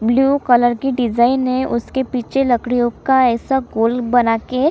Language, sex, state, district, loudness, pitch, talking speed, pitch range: Hindi, female, Chhattisgarh, Kabirdham, -16 LUFS, 245 Hz, 155 wpm, 240-265 Hz